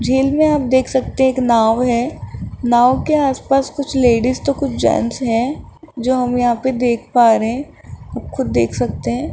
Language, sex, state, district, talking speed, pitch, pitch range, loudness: Hindi, female, Rajasthan, Jaipur, 200 wpm, 255 Hz, 240-270 Hz, -16 LUFS